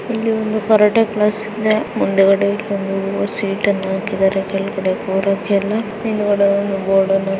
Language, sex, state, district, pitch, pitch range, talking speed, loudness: Kannada, female, Karnataka, Chamarajanagar, 200 Hz, 195-215 Hz, 140 wpm, -17 LUFS